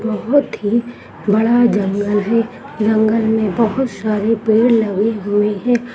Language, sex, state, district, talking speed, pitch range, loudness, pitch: Hindi, female, Bihar, Saharsa, 130 wpm, 210-235 Hz, -16 LUFS, 220 Hz